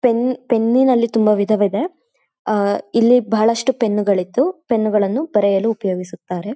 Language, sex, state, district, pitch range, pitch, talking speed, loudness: Kannada, female, Karnataka, Shimoga, 205-250 Hz, 225 Hz, 135 wpm, -17 LUFS